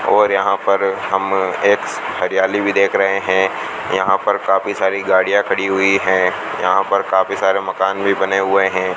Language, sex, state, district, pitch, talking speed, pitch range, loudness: Hindi, male, Rajasthan, Bikaner, 95 Hz, 180 wpm, 95-100 Hz, -16 LUFS